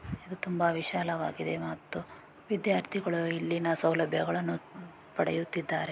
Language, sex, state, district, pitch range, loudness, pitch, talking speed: Kannada, female, Karnataka, Raichur, 165-185 Hz, -32 LUFS, 170 Hz, 70 wpm